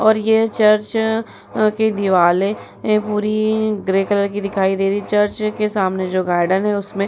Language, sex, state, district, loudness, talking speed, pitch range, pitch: Hindi, female, Uttar Pradesh, Muzaffarnagar, -18 LUFS, 195 wpm, 195-215 Hz, 210 Hz